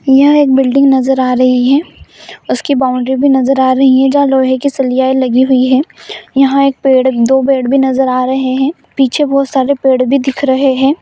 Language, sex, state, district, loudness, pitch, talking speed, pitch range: Hindi, female, Bihar, Saharsa, -11 LUFS, 265 Hz, 220 wpm, 260-275 Hz